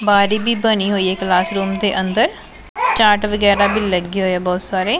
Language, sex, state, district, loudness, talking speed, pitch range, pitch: Punjabi, female, Punjab, Pathankot, -16 LUFS, 215 wpm, 190-215 Hz, 200 Hz